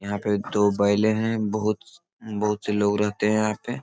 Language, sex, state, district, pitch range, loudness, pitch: Hindi, male, Bihar, Supaul, 105-110 Hz, -24 LUFS, 105 Hz